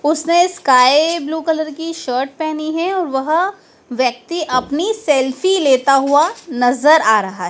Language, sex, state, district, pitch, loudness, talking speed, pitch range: Hindi, female, Madhya Pradesh, Dhar, 305 Hz, -15 LUFS, 150 wpm, 260-330 Hz